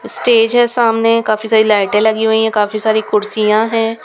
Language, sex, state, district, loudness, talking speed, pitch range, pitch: Hindi, female, Punjab, Kapurthala, -13 LUFS, 195 wpm, 215-225 Hz, 220 Hz